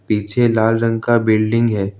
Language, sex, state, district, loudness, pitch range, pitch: Hindi, male, Jharkhand, Ranchi, -16 LUFS, 105-115 Hz, 110 Hz